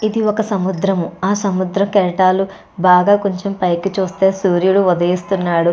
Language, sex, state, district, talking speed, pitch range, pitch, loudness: Telugu, female, Andhra Pradesh, Chittoor, 125 wpm, 180-200 Hz, 190 Hz, -16 LUFS